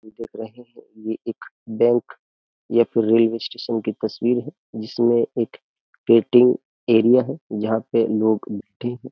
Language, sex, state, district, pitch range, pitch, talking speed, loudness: Hindi, male, Uttar Pradesh, Jyotiba Phule Nagar, 110-120 Hz, 115 Hz, 150 wpm, -20 LUFS